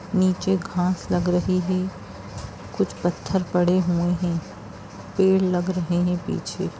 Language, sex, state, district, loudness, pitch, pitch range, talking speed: Hindi, female, Bihar, Jamui, -23 LUFS, 180 Hz, 170-185 Hz, 130 wpm